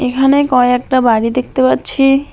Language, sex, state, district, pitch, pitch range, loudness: Bengali, male, West Bengal, Alipurduar, 255 Hz, 235-270 Hz, -12 LUFS